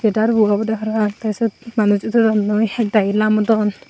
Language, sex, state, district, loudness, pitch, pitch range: Chakma, female, Tripura, Unakoti, -17 LUFS, 215 Hz, 210-225 Hz